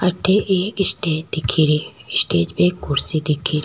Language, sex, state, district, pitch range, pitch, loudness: Rajasthani, female, Rajasthan, Churu, 145-180 Hz, 155 Hz, -18 LUFS